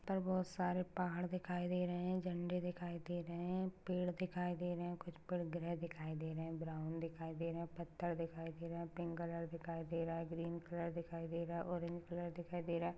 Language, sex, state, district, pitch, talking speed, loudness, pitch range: Hindi, male, Maharashtra, Dhule, 170 Hz, 255 wpm, -44 LUFS, 170-180 Hz